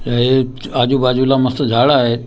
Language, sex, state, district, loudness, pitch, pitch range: Marathi, male, Maharashtra, Gondia, -14 LUFS, 130 Hz, 120-135 Hz